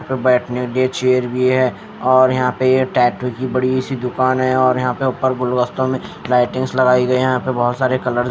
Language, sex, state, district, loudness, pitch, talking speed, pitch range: Hindi, male, Haryana, Jhajjar, -17 LUFS, 130 Hz, 240 wpm, 125-130 Hz